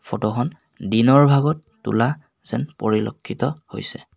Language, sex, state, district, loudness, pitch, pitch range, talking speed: Assamese, male, Assam, Kamrup Metropolitan, -21 LUFS, 125 Hz, 110-145 Hz, 115 wpm